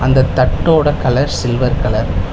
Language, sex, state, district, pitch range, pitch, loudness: Tamil, male, Tamil Nadu, Chennai, 120-135 Hz, 130 Hz, -14 LUFS